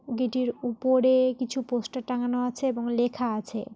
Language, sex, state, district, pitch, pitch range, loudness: Bengali, male, West Bengal, North 24 Parganas, 250 Hz, 240-255 Hz, -27 LUFS